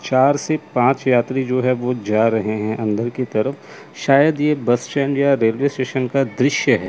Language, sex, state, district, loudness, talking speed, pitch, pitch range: Hindi, male, Chandigarh, Chandigarh, -18 LUFS, 200 wpm, 130 Hz, 120-140 Hz